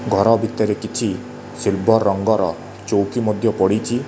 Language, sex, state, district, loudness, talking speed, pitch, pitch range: Odia, male, Odisha, Khordha, -19 LUFS, 115 wpm, 110 Hz, 100-115 Hz